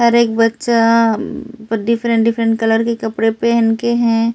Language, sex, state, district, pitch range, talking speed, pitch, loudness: Hindi, female, Delhi, New Delhi, 225-235 Hz, 180 wpm, 230 Hz, -15 LUFS